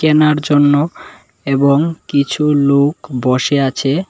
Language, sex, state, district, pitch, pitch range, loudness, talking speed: Bengali, male, Tripura, West Tripura, 145 Hz, 140-155 Hz, -14 LUFS, 100 wpm